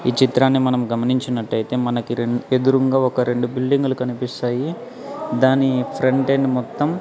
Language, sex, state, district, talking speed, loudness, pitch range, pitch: Telugu, male, Andhra Pradesh, Sri Satya Sai, 120 wpm, -19 LUFS, 125-135 Hz, 130 Hz